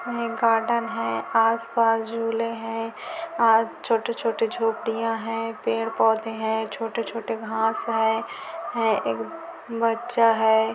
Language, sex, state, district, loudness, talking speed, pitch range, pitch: Hindi, female, Chhattisgarh, Korba, -24 LUFS, 105 wpm, 225-230 Hz, 225 Hz